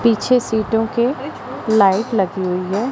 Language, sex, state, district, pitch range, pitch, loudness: Hindi, female, Madhya Pradesh, Umaria, 195-235 Hz, 220 Hz, -18 LUFS